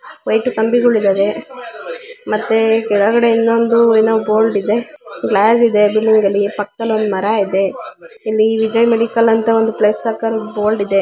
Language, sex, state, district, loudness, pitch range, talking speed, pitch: Kannada, female, Karnataka, Dakshina Kannada, -14 LUFS, 210-230 Hz, 145 wpm, 220 Hz